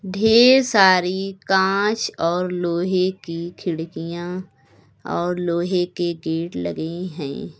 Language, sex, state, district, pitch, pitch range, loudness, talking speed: Hindi, female, Uttar Pradesh, Lucknow, 180 Hz, 165-190 Hz, -20 LUFS, 100 wpm